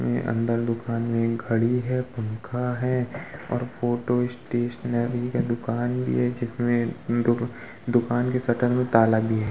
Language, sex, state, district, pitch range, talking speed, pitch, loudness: Hindi, male, Uttar Pradesh, Muzaffarnagar, 115-125 Hz, 145 wpm, 120 Hz, -25 LUFS